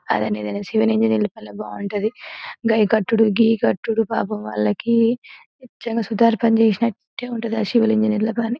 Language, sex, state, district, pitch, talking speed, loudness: Telugu, female, Telangana, Nalgonda, 225 Hz, 90 wpm, -20 LUFS